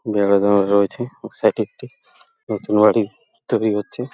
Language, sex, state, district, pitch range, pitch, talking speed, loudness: Bengali, male, West Bengal, Purulia, 100-110 Hz, 105 Hz, 145 wpm, -19 LUFS